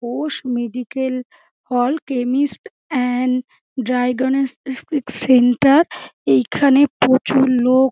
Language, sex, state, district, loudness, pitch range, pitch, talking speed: Bengali, female, West Bengal, Dakshin Dinajpur, -18 LUFS, 250-275 Hz, 260 Hz, 75 wpm